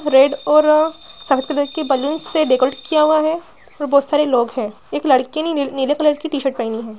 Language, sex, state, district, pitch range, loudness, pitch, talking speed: Hindi, female, Bihar, Araria, 265-305 Hz, -17 LUFS, 290 Hz, 215 wpm